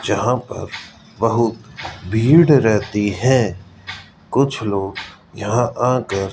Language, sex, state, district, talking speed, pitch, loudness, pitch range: Hindi, male, Rajasthan, Jaipur, 115 wpm, 115 Hz, -18 LUFS, 100-125 Hz